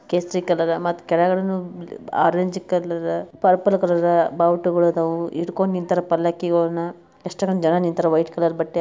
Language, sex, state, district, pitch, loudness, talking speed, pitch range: Kannada, male, Karnataka, Bijapur, 175 Hz, -21 LUFS, 150 wpm, 170-180 Hz